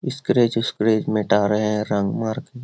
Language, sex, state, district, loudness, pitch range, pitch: Hindi, male, Bihar, Lakhisarai, -21 LUFS, 105-120 Hz, 110 Hz